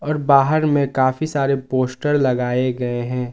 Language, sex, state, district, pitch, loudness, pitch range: Hindi, male, Jharkhand, Garhwa, 130 Hz, -19 LUFS, 125-145 Hz